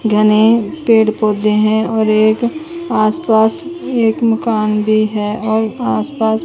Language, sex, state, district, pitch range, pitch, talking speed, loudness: Hindi, female, Chandigarh, Chandigarh, 215-230 Hz, 220 Hz, 140 wpm, -14 LUFS